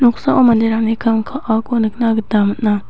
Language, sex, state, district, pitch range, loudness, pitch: Garo, female, Meghalaya, West Garo Hills, 220-235 Hz, -15 LUFS, 225 Hz